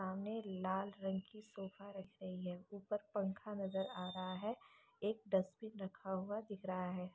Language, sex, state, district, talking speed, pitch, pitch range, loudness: Hindi, female, Chhattisgarh, Raigarh, 175 wpm, 195 Hz, 190-205 Hz, -44 LUFS